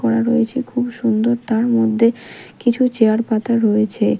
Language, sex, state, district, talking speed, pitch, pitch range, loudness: Bengali, female, Odisha, Malkangiri, 145 wpm, 230 Hz, 220-240 Hz, -17 LUFS